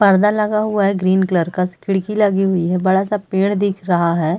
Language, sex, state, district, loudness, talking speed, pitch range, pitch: Hindi, female, Chhattisgarh, Rajnandgaon, -17 LUFS, 230 wpm, 180-205 Hz, 195 Hz